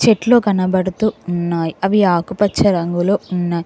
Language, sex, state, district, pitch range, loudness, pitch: Telugu, female, Telangana, Mahabubabad, 175-205 Hz, -16 LUFS, 185 Hz